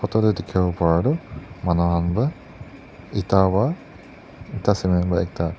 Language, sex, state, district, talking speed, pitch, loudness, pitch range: Nagamese, male, Nagaland, Dimapur, 150 wpm, 95 Hz, -21 LUFS, 85-110 Hz